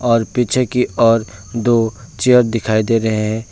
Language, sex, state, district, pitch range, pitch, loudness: Hindi, male, West Bengal, Alipurduar, 110-125 Hz, 115 Hz, -16 LUFS